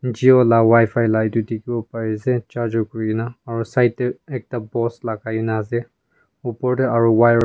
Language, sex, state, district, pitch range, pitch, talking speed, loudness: Nagamese, male, Nagaland, Kohima, 110-120 Hz, 115 Hz, 185 wpm, -19 LUFS